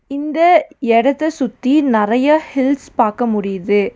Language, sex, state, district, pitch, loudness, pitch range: Tamil, female, Tamil Nadu, Nilgiris, 265 Hz, -15 LUFS, 230-300 Hz